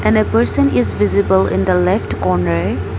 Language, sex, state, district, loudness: English, female, Arunachal Pradesh, Papum Pare, -15 LUFS